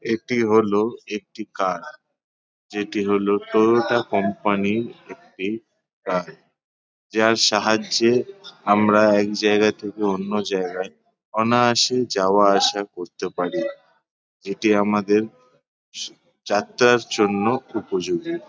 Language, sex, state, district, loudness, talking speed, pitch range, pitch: Bengali, male, West Bengal, Paschim Medinipur, -20 LUFS, 95 wpm, 100-115 Hz, 105 Hz